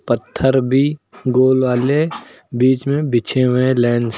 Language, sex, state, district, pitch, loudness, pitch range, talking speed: Hindi, male, Uttar Pradesh, Lucknow, 130 Hz, -16 LUFS, 125-135 Hz, 145 wpm